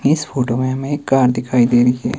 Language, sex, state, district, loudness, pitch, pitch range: Hindi, male, Himachal Pradesh, Shimla, -16 LUFS, 125 Hz, 120-135 Hz